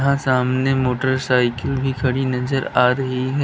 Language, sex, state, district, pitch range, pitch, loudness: Hindi, male, Uttar Pradesh, Lalitpur, 125-135 Hz, 130 Hz, -19 LUFS